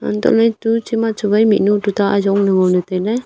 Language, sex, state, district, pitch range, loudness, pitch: Wancho, female, Arunachal Pradesh, Longding, 195-225 Hz, -15 LUFS, 205 Hz